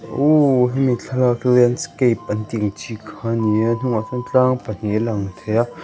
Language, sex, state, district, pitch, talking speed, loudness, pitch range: Mizo, male, Mizoram, Aizawl, 115 Hz, 235 wpm, -19 LUFS, 110-125 Hz